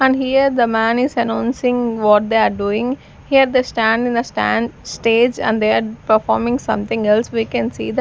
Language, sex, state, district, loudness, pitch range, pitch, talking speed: English, female, Chandigarh, Chandigarh, -17 LUFS, 220-250 Hz, 230 Hz, 210 wpm